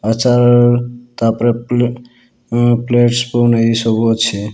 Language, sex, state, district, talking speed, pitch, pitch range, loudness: Odia, male, Odisha, Malkangiri, 130 wpm, 120 Hz, 115-120 Hz, -13 LUFS